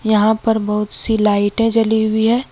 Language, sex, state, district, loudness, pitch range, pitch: Hindi, female, Jharkhand, Ranchi, -15 LUFS, 210-225 Hz, 220 Hz